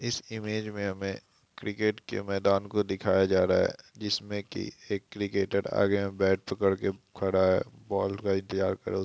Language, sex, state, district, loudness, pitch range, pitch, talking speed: Hindi, female, Bihar, East Champaran, -29 LUFS, 95-105 Hz, 100 Hz, 165 wpm